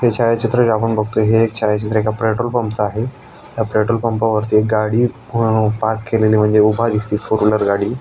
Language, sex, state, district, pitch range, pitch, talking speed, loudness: Marathi, male, Maharashtra, Aurangabad, 110-115 Hz, 110 Hz, 200 wpm, -16 LUFS